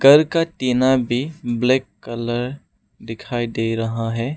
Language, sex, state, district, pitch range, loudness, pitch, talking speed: Hindi, male, Arunachal Pradesh, Lower Dibang Valley, 115-130 Hz, -20 LUFS, 120 Hz, 135 wpm